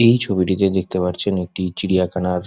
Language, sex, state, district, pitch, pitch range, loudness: Bengali, male, West Bengal, Jhargram, 95 Hz, 90-100 Hz, -19 LUFS